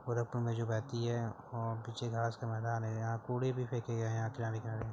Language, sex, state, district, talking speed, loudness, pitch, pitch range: Bhojpuri, male, Uttar Pradesh, Gorakhpur, 230 wpm, -38 LUFS, 115 Hz, 115-120 Hz